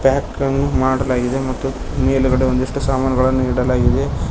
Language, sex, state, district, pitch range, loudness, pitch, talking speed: Kannada, male, Karnataka, Koppal, 125-135 Hz, -18 LUFS, 130 Hz, 110 wpm